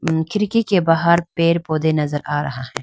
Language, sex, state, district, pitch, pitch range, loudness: Hindi, female, Arunachal Pradesh, Lower Dibang Valley, 165 Hz, 150-170 Hz, -18 LUFS